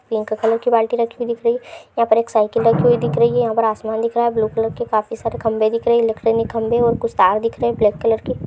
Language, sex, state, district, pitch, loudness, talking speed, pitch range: Hindi, female, Uttar Pradesh, Deoria, 230 Hz, -18 LUFS, 310 wpm, 220-235 Hz